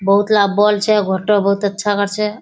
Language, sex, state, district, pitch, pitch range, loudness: Hindi, female, Bihar, Kishanganj, 205 Hz, 200-210 Hz, -15 LUFS